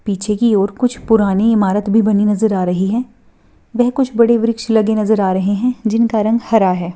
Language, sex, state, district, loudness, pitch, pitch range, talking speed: Hindi, female, Maharashtra, Nagpur, -15 LUFS, 220 Hz, 200-230 Hz, 215 wpm